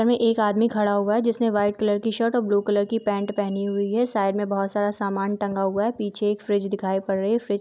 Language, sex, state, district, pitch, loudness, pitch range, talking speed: Hindi, female, Jharkhand, Jamtara, 205 Hz, -23 LUFS, 200-220 Hz, 285 wpm